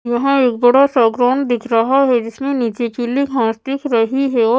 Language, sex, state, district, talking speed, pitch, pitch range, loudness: Hindi, female, Maharashtra, Mumbai Suburban, 220 wpm, 245 Hz, 235-270 Hz, -15 LUFS